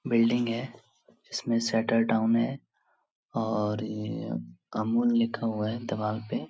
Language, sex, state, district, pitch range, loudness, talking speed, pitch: Hindi, male, Bihar, Supaul, 105-115 Hz, -29 LUFS, 140 wpm, 115 Hz